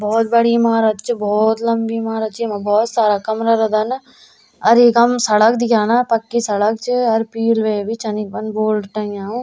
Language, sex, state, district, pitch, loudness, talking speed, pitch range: Garhwali, female, Uttarakhand, Tehri Garhwal, 225 Hz, -16 LUFS, 185 wpm, 215-230 Hz